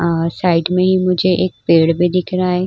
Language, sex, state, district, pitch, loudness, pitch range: Hindi, female, Uttar Pradesh, Budaun, 180 Hz, -15 LUFS, 170-185 Hz